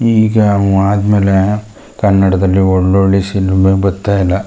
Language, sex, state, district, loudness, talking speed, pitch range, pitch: Kannada, male, Karnataka, Chamarajanagar, -12 LUFS, 135 wpm, 95-105 Hz, 100 Hz